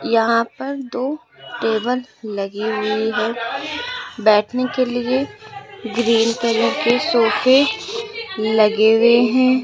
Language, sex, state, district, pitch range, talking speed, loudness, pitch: Hindi, female, Rajasthan, Jaipur, 225-260 Hz, 105 wpm, -18 LUFS, 235 Hz